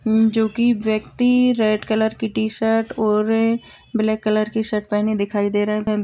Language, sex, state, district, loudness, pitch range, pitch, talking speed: Hindi, female, Bihar, Purnia, -19 LUFS, 215-225 Hz, 220 Hz, 150 wpm